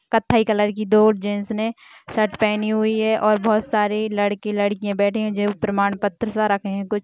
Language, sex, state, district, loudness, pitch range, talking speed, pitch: Hindi, female, Chhattisgarh, Jashpur, -20 LUFS, 205-215 Hz, 205 wpm, 215 Hz